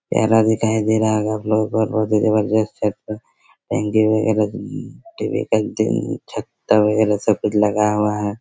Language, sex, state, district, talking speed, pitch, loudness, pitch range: Hindi, male, Chhattisgarh, Raigarh, 170 wpm, 110 Hz, -19 LUFS, 105-110 Hz